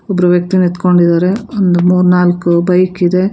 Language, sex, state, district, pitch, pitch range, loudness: Kannada, female, Karnataka, Bangalore, 180 Hz, 175-185 Hz, -11 LUFS